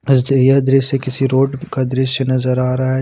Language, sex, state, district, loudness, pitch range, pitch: Hindi, male, Jharkhand, Ranchi, -15 LUFS, 130-135 Hz, 130 Hz